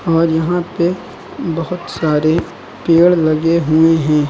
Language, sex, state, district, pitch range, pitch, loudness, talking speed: Hindi, male, Uttar Pradesh, Lucknow, 160-175 Hz, 165 Hz, -15 LUFS, 125 wpm